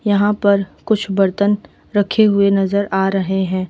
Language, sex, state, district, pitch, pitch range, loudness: Hindi, female, Uttar Pradesh, Lalitpur, 200 Hz, 190-205 Hz, -16 LUFS